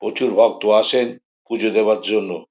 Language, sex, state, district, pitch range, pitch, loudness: Bengali, male, West Bengal, Jhargram, 110-120 Hz, 110 Hz, -17 LUFS